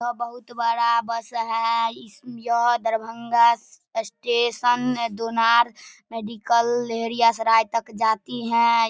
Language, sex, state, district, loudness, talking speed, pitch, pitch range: Hindi, female, Bihar, Darbhanga, -22 LUFS, 110 wpm, 230 Hz, 230-235 Hz